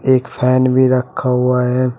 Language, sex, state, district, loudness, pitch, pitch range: Hindi, male, Uttar Pradesh, Shamli, -15 LUFS, 130 Hz, 125-130 Hz